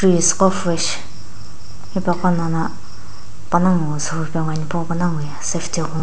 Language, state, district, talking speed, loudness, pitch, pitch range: Sumi, Nagaland, Dimapur, 90 wpm, -20 LUFS, 165 Hz, 110-175 Hz